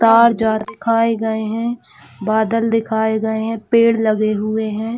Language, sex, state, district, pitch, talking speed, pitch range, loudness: Hindi, female, Chhattisgarh, Bilaspur, 220 Hz, 145 wpm, 220-230 Hz, -17 LUFS